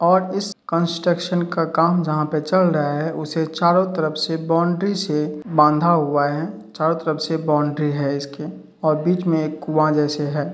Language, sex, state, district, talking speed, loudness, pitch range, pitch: Hindi, male, Uttar Pradesh, Hamirpur, 180 wpm, -20 LUFS, 150-170 Hz, 160 Hz